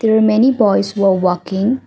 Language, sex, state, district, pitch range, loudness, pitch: English, female, Assam, Kamrup Metropolitan, 190-225 Hz, -14 LUFS, 210 Hz